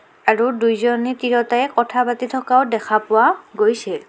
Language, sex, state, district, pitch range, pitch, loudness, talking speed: Assamese, female, Assam, Kamrup Metropolitan, 235-255 Hz, 245 Hz, -18 LUFS, 145 wpm